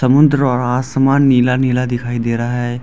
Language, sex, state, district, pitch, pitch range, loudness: Hindi, male, Delhi, New Delhi, 125 Hz, 120-135 Hz, -14 LUFS